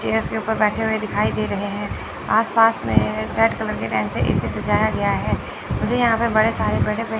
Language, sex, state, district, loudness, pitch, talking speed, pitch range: Hindi, female, Chandigarh, Chandigarh, -20 LUFS, 220 Hz, 235 wpm, 210-225 Hz